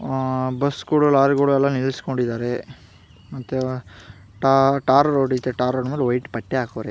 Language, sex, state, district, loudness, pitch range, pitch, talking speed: Kannada, female, Karnataka, Gulbarga, -20 LUFS, 120-135 Hz, 130 Hz, 155 wpm